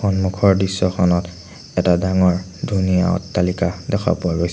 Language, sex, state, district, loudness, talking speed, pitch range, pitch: Assamese, male, Assam, Sonitpur, -19 LUFS, 120 wpm, 90-95 Hz, 90 Hz